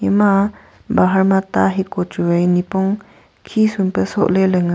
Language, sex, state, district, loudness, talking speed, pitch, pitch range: Wancho, female, Arunachal Pradesh, Longding, -17 LUFS, 140 wpm, 190 Hz, 175-195 Hz